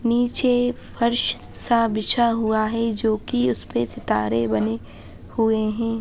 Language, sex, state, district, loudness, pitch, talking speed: Hindi, female, Bihar, Jamui, -21 LUFS, 220 Hz, 130 wpm